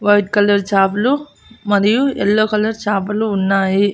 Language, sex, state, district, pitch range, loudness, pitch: Telugu, female, Andhra Pradesh, Annamaya, 200-215 Hz, -16 LUFS, 205 Hz